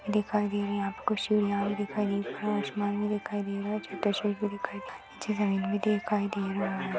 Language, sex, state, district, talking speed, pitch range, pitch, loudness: Hindi, male, Maharashtra, Nagpur, 230 wpm, 200-210 Hz, 205 Hz, -30 LUFS